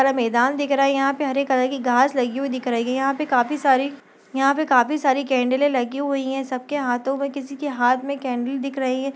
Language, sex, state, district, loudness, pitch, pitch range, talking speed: Hindi, female, Chhattisgarh, Bastar, -21 LUFS, 270 Hz, 255-275 Hz, 235 wpm